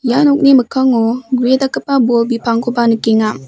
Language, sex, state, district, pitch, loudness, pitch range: Garo, female, Meghalaya, West Garo Hills, 245 Hz, -13 LUFS, 230-265 Hz